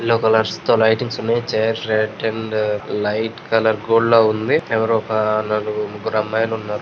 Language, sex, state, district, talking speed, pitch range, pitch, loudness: Telugu, male, Andhra Pradesh, Srikakulam, 140 wpm, 110-115 Hz, 110 Hz, -18 LUFS